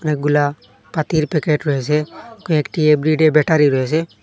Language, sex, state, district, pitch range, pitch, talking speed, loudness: Bengali, male, Assam, Hailakandi, 150-160 Hz, 155 Hz, 100 wpm, -17 LUFS